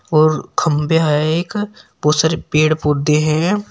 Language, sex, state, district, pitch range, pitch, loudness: Hindi, male, Uttar Pradesh, Shamli, 150-165 Hz, 155 Hz, -16 LUFS